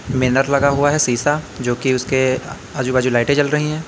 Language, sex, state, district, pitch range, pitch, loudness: Hindi, male, Uttar Pradesh, Lalitpur, 130-145 Hz, 130 Hz, -17 LUFS